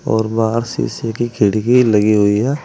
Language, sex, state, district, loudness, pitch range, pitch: Hindi, male, Uttar Pradesh, Saharanpur, -15 LUFS, 105-120 Hz, 110 Hz